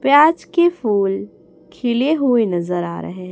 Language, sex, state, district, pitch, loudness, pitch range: Hindi, female, Chhattisgarh, Raipur, 230 Hz, -18 LUFS, 175-290 Hz